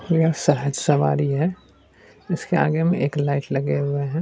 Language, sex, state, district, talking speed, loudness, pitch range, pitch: Hindi, male, Bihar, Supaul, 185 wpm, -21 LUFS, 140-160 Hz, 140 Hz